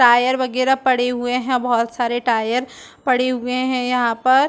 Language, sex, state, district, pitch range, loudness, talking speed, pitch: Hindi, female, Chhattisgarh, Bastar, 240-255 Hz, -19 LUFS, 185 wpm, 250 Hz